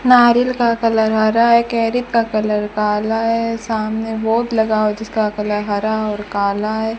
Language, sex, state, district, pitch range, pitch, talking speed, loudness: Hindi, female, Rajasthan, Bikaner, 215-230 Hz, 220 Hz, 170 wpm, -17 LUFS